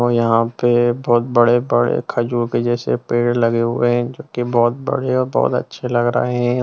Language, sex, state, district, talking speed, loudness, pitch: Hindi, male, Bihar, Jamui, 210 wpm, -17 LUFS, 120 Hz